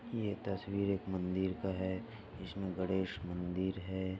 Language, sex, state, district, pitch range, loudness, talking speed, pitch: Hindi, male, Maharashtra, Sindhudurg, 95-100 Hz, -38 LUFS, 145 wpm, 95 Hz